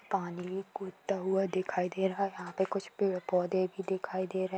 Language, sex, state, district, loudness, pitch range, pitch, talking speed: Hindi, female, Bihar, Sitamarhi, -34 LUFS, 185-195 Hz, 190 Hz, 210 wpm